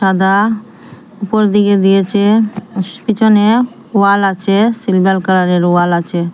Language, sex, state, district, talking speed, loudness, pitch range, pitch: Bengali, female, Assam, Hailakandi, 105 wpm, -12 LUFS, 190-215 Hz, 200 Hz